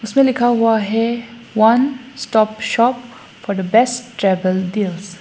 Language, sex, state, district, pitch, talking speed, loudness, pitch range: Hindi, female, Assam, Hailakandi, 230 Hz, 150 wpm, -17 LUFS, 205-245 Hz